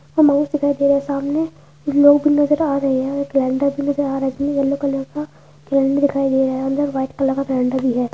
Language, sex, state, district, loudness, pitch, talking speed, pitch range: Hindi, female, Uttar Pradesh, Budaun, -18 LUFS, 280 Hz, 230 wpm, 270-285 Hz